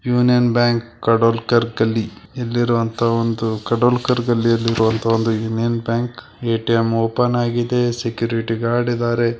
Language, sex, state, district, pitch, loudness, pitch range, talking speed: Kannada, male, Karnataka, Belgaum, 115 Hz, -18 LUFS, 115-120 Hz, 115 wpm